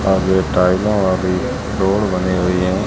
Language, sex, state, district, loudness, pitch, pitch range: Hindi, male, Rajasthan, Jaisalmer, -16 LUFS, 95 Hz, 90-95 Hz